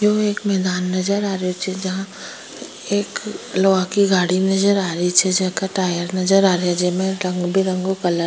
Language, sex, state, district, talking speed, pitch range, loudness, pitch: Rajasthani, female, Rajasthan, Churu, 165 wpm, 180-195 Hz, -19 LUFS, 190 Hz